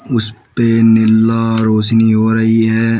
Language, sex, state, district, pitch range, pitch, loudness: Hindi, male, Uttar Pradesh, Shamli, 110-115 Hz, 115 Hz, -11 LUFS